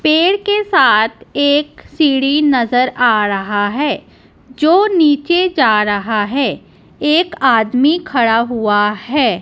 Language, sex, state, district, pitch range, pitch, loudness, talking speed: Hindi, female, Punjab, Kapurthala, 225-310 Hz, 270 Hz, -14 LUFS, 120 wpm